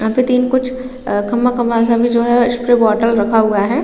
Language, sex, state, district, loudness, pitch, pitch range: Hindi, female, Chhattisgarh, Raigarh, -14 LUFS, 240 Hz, 225-250 Hz